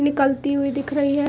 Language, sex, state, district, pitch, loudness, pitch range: Hindi, female, Jharkhand, Sahebganj, 280 Hz, -21 LUFS, 275-285 Hz